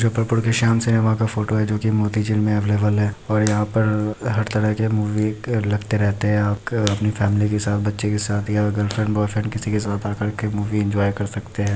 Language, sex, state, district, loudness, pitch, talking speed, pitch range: Hindi, male, Bihar, Muzaffarpur, -21 LUFS, 105 Hz, 205 wpm, 105-110 Hz